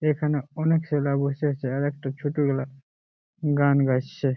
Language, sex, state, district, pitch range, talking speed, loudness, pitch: Bengali, male, West Bengal, Jalpaiguri, 135-150 Hz, 150 wpm, -25 LUFS, 140 Hz